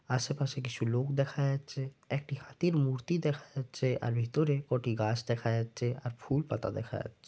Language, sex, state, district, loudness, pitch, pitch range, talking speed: Bengali, male, West Bengal, Jalpaiguri, -33 LUFS, 130 Hz, 120-140 Hz, 175 wpm